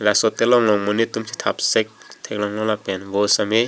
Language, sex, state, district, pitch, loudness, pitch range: Karbi, male, Assam, Karbi Anglong, 105 Hz, -20 LUFS, 105-115 Hz